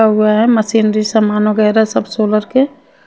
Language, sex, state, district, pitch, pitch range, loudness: Hindi, female, Punjab, Kapurthala, 215 Hz, 215-225 Hz, -13 LUFS